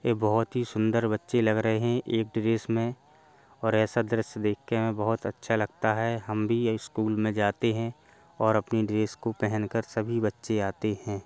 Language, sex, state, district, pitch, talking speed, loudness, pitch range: Hindi, male, Uttar Pradesh, Jalaun, 110 Hz, 185 wpm, -28 LUFS, 110-115 Hz